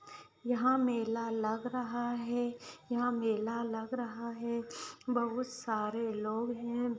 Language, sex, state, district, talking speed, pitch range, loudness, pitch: Hindi, female, Bihar, Saharsa, 120 wpm, 230-245 Hz, -35 LUFS, 240 Hz